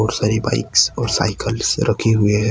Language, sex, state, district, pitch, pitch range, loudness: Hindi, male, Maharashtra, Gondia, 110 Hz, 110-115 Hz, -17 LUFS